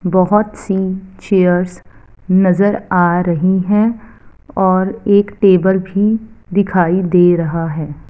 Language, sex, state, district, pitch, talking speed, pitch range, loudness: Hindi, female, Punjab, Fazilka, 190 Hz, 110 wpm, 180-200 Hz, -14 LUFS